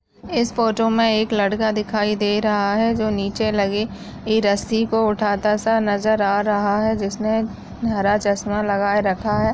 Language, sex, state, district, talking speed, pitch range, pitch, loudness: Hindi, female, Maharashtra, Chandrapur, 165 wpm, 205-220 Hz, 210 Hz, -20 LUFS